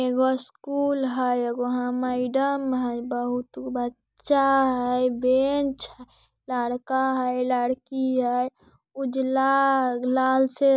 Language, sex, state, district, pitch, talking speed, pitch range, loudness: Hindi, female, Bihar, Lakhisarai, 255 Hz, 115 wpm, 250-265 Hz, -24 LUFS